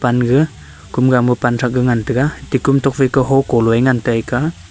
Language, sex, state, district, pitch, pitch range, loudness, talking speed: Wancho, male, Arunachal Pradesh, Longding, 125 Hz, 120-135 Hz, -15 LUFS, 180 wpm